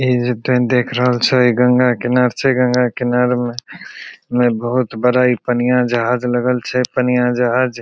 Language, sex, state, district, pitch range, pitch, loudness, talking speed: Maithili, male, Bihar, Begusarai, 120-125 Hz, 125 Hz, -15 LUFS, 185 wpm